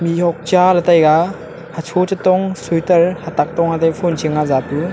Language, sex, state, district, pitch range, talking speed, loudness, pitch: Wancho, male, Arunachal Pradesh, Longding, 160-180 Hz, 170 wpm, -15 LUFS, 170 Hz